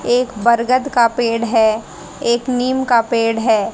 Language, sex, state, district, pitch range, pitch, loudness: Hindi, female, Haryana, Rohtak, 225-245 Hz, 235 Hz, -16 LUFS